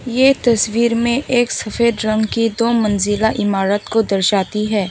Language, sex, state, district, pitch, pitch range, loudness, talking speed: Hindi, female, Tripura, West Tripura, 220 Hz, 210-235 Hz, -16 LUFS, 160 wpm